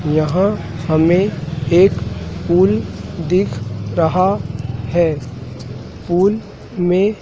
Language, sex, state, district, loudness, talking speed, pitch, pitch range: Hindi, male, Madhya Pradesh, Dhar, -17 LUFS, 85 wpm, 160 Hz, 120-180 Hz